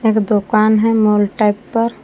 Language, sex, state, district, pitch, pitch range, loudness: Hindi, female, Jharkhand, Palamu, 215 Hz, 210-225 Hz, -14 LUFS